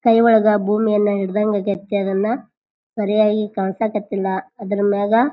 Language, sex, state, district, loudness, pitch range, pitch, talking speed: Kannada, female, Karnataka, Bijapur, -19 LUFS, 200-220 Hz, 210 Hz, 110 wpm